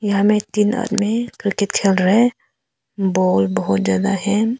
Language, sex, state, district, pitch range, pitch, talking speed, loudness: Hindi, female, Arunachal Pradesh, Papum Pare, 190-215 Hz, 205 Hz, 155 wpm, -18 LUFS